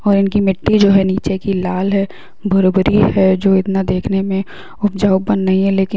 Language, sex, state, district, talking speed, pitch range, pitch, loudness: Hindi, female, Bihar, Muzaffarpur, 210 wpm, 190-200 Hz, 195 Hz, -15 LUFS